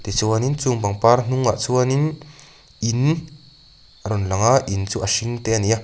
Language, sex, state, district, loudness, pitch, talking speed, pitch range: Mizo, male, Mizoram, Aizawl, -20 LUFS, 120 Hz, 185 wpm, 110-140 Hz